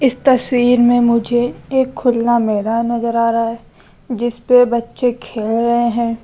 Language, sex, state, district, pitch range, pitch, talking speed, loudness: Hindi, female, Rajasthan, Jaipur, 230-245 Hz, 235 Hz, 165 wpm, -15 LUFS